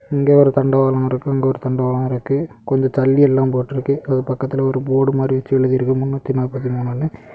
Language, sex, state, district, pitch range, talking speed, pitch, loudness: Tamil, male, Tamil Nadu, Kanyakumari, 130-135 Hz, 180 wpm, 130 Hz, -17 LUFS